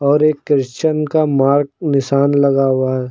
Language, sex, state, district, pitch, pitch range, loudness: Hindi, male, Uttar Pradesh, Lucknow, 140 Hz, 135-150 Hz, -15 LUFS